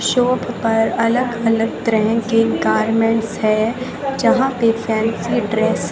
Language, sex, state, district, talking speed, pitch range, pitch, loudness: Hindi, female, Haryana, Jhajjar, 130 wpm, 225-240 Hz, 225 Hz, -17 LUFS